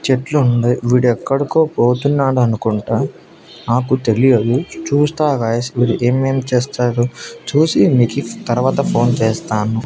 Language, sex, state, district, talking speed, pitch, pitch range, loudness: Telugu, male, Andhra Pradesh, Annamaya, 105 wpm, 125 Hz, 120-135 Hz, -16 LUFS